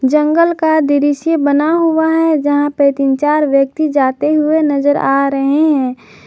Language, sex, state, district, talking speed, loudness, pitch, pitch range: Hindi, female, Jharkhand, Garhwa, 165 wpm, -13 LUFS, 290 Hz, 275-315 Hz